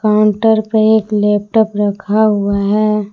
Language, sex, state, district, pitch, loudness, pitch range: Hindi, female, Jharkhand, Palamu, 210 Hz, -13 LUFS, 205-220 Hz